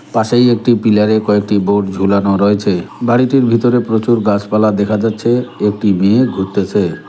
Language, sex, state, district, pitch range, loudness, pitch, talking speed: Bengali, male, West Bengal, Cooch Behar, 100-120 Hz, -13 LUFS, 110 Hz, 145 wpm